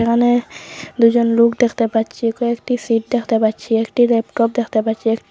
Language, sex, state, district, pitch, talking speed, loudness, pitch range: Bengali, female, Assam, Hailakandi, 230 Hz, 160 wpm, -17 LUFS, 225-240 Hz